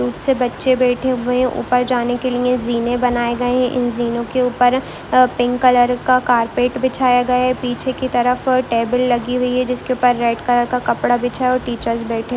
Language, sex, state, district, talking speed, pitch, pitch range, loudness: Hindi, female, Bihar, Muzaffarpur, 220 wpm, 250 Hz, 240-255 Hz, -17 LUFS